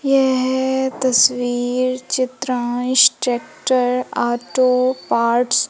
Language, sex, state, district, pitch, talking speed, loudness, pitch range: Hindi, female, Madhya Pradesh, Umaria, 255 Hz, 75 wpm, -17 LUFS, 245-260 Hz